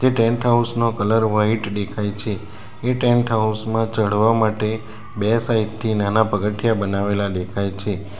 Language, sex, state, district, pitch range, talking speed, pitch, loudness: Gujarati, male, Gujarat, Valsad, 105-115 Hz, 155 wpm, 110 Hz, -20 LUFS